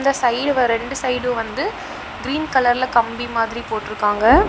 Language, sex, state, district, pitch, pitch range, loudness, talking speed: Tamil, female, Tamil Nadu, Namakkal, 245 Hz, 230-265 Hz, -19 LUFS, 145 wpm